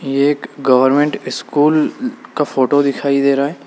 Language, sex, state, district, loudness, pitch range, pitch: Hindi, male, Uttar Pradesh, Lalitpur, -15 LUFS, 140-150 Hz, 145 Hz